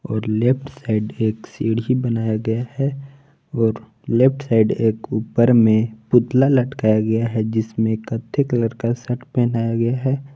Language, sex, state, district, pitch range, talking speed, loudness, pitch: Hindi, male, Jharkhand, Palamu, 110-130 Hz, 145 wpm, -19 LUFS, 115 Hz